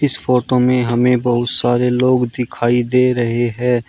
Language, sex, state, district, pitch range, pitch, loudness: Hindi, male, Uttar Pradesh, Shamli, 120-125 Hz, 125 Hz, -15 LUFS